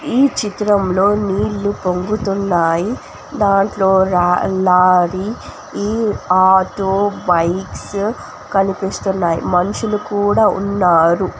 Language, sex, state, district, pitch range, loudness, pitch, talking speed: Telugu, female, Andhra Pradesh, Anantapur, 180-205 Hz, -16 LUFS, 195 Hz, 70 wpm